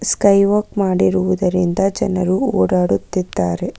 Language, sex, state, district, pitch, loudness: Kannada, female, Karnataka, Bangalore, 180 Hz, -17 LUFS